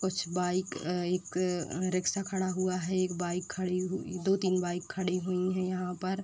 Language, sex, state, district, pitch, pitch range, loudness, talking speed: Hindi, female, Uttar Pradesh, Deoria, 185 Hz, 180-185 Hz, -32 LUFS, 190 wpm